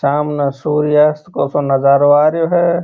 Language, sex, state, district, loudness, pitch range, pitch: Marwari, male, Rajasthan, Churu, -13 LUFS, 140-155 Hz, 150 Hz